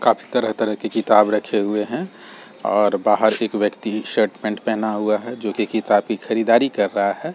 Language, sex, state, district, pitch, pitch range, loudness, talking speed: Hindi, male, Chhattisgarh, Rajnandgaon, 110 Hz, 105-110 Hz, -20 LUFS, 195 wpm